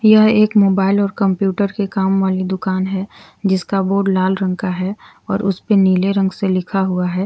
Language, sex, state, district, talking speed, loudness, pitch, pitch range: Hindi, female, Jharkhand, Garhwa, 205 wpm, -16 LUFS, 195 Hz, 190-200 Hz